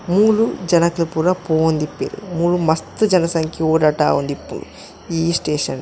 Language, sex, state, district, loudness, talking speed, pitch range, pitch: Tulu, male, Karnataka, Dakshina Kannada, -18 LUFS, 135 wpm, 160-180 Hz, 165 Hz